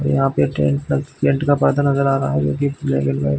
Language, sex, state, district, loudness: Hindi, male, Chhattisgarh, Bilaspur, -18 LUFS